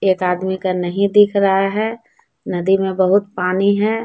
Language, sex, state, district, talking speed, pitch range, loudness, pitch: Hindi, female, Jharkhand, Deoghar, 180 wpm, 185-205 Hz, -17 LUFS, 195 Hz